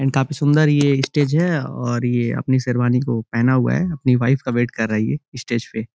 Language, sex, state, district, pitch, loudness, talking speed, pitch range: Hindi, male, Uttar Pradesh, Gorakhpur, 125 Hz, -19 LUFS, 240 wpm, 120-145 Hz